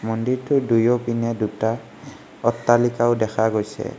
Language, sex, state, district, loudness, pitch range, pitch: Assamese, male, Assam, Kamrup Metropolitan, -21 LUFS, 110-120 Hz, 115 Hz